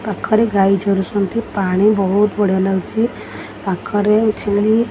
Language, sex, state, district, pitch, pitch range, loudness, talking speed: Odia, female, Odisha, Khordha, 205 Hz, 195-215 Hz, -16 LUFS, 120 wpm